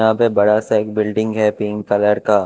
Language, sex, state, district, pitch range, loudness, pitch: Hindi, male, Punjab, Kapurthala, 105-110 Hz, -17 LUFS, 105 Hz